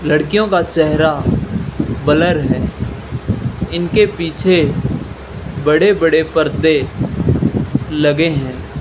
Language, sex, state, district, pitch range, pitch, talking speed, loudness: Hindi, male, Rajasthan, Bikaner, 145-165 Hz, 155 Hz, 80 wpm, -15 LUFS